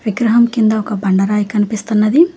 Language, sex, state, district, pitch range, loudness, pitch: Telugu, female, Telangana, Hyderabad, 210-235 Hz, -14 LUFS, 215 Hz